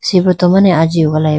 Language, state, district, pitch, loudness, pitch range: Idu Mishmi, Arunachal Pradesh, Lower Dibang Valley, 170 Hz, -11 LUFS, 155-185 Hz